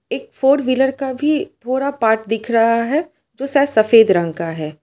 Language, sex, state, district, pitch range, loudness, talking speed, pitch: Hindi, female, Gujarat, Valsad, 220-275 Hz, -17 LUFS, 200 wpm, 240 Hz